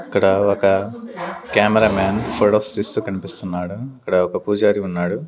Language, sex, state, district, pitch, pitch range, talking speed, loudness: Telugu, male, Andhra Pradesh, Sri Satya Sai, 100 Hz, 95-105 Hz, 115 wpm, -18 LUFS